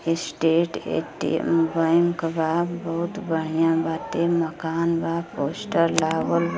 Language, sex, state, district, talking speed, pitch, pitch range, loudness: Bhojpuri, female, Uttar Pradesh, Gorakhpur, 120 wpm, 165 Hz, 160-170 Hz, -23 LUFS